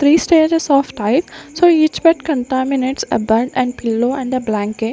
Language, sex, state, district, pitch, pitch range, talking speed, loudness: English, female, Maharashtra, Gondia, 260 Hz, 235-310 Hz, 180 wpm, -15 LUFS